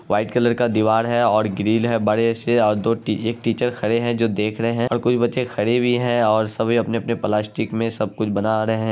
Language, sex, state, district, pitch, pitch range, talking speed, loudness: Hindi, male, Bihar, Araria, 115 Hz, 110-120 Hz, 255 wpm, -20 LUFS